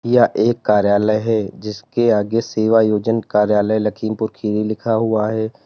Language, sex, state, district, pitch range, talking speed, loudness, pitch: Hindi, male, Uttar Pradesh, Lalitpur, 105-115 Hz, 140 wpm, -17 LUFS, 110 Hz